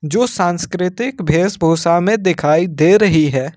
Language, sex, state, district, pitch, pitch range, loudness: Hindi, male, Jharkhand, Ranchi, 175 Hz, 160-195 Hz, -15 LUFS